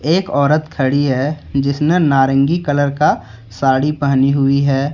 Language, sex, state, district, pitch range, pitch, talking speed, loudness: Hindi, male, Jharkhand, Deoghar, 135-150 Hz, 140 Hz, 145 wpm, -15 LUFS